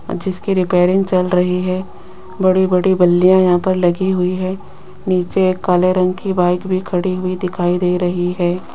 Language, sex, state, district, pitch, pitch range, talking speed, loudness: Hindi, female, Rajasthan, Jaipur, 185 Hz, 180-185 Hz, 165 wpm, -16 LUFS